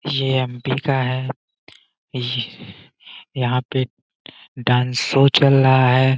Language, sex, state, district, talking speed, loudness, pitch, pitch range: Hindi, male, Uttar Pradesh, Gorakhpur, 115 wpm, -18 LUFS, 130 Hz, 125-135 Hz